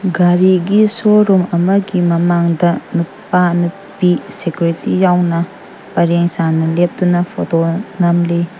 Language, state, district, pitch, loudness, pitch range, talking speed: Manipuri, Manipur, Imphal West, 175 Hz, -14 LUFS, 170-190 Hz, 90 wpm